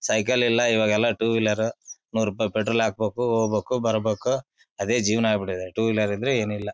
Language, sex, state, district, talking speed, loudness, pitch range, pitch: Kannada, male, Karnataka, Bellary, 170 wpm, -23 LUFS, 105-115 Hz, 110 Hz